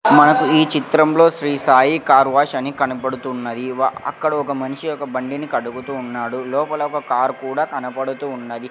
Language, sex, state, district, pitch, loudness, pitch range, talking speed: Telugu, male, Andhra Pradesh, Sri Satya Sai, 135 Hz, -18 LUFS, 130-150 Hz, 150 wpm